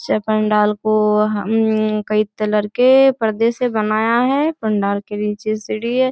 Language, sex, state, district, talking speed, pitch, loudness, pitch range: Hindi, female, Bihar, Bhagalpur, 155 wpm, 215 Hz, -17 LUFS, 210-230 Hz